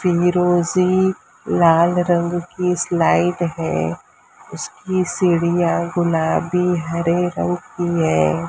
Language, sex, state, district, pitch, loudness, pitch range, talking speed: Hindi, female, Maharashtra, Mumbai Suburban, 175 Hz, -18 LUFS, 165-180 Hz, 90 wpm